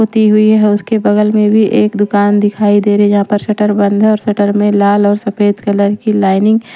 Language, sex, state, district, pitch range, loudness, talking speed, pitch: Hindi, female, Odisha, Nuapada, 205-215 Hz, -11 LUFS, 250 wpm, 205 Hz